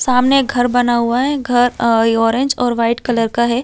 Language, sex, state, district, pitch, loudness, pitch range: Hindi, female, Chhattisgarh, Balrampur, 245 Hz, -15 LUFS, 235-250 Hz